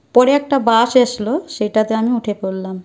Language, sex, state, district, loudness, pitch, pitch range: Bengali, male, West Bengal, Jhargram, -16 LUFS, 230 Hz, 210-255 Hz